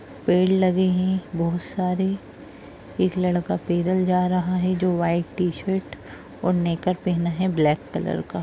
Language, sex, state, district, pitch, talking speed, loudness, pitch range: Hindi, female, Chhattisgarh, Rajnandgaon, 180 Hz, 150 wpm, -23 LUFS, 170-185 Hz